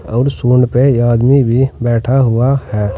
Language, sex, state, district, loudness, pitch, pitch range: Hindi, male, Uttar Pradesh, Saharanpur, -12 LUFS, 125 Hz, 115-130 Hz